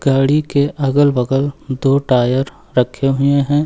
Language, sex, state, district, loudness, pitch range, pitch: Hindi, male, Uttar Pradesh, Lucknow, -16 LUFS, 135-140 Hz, 135 Hz